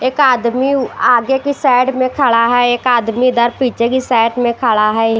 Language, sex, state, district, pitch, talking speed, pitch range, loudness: Hindi, female, Bihar, West Champaran, 245 Hz, 210 wpm, 235-260 Hz, -13 LUFS